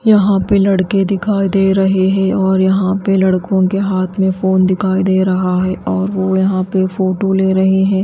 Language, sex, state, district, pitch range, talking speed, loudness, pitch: Hindi, female, Bihar, Katihar, 190-195 Hz, 200 wpm, -14 LUFS, 190 Hz